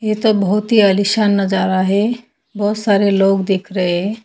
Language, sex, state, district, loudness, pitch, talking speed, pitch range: Hindi, female, Haryana, Charkhi Dadri, -15 LUFS, 200 Hz, 170 wpm, 195-215 Hz